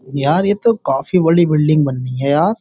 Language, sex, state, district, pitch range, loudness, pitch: Hindi, male, Uttar Pradesh, Jyotiba Phule Nagar, 140-190 Hz, -15 LUFS, 150 Hz